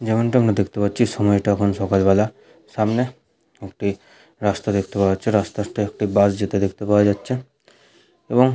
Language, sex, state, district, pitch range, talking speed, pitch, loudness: Bengali, male, West Bengal, Paschim Medinipur, 100-110 Hz, 155 wpm, 105 Hz, -20 LUFS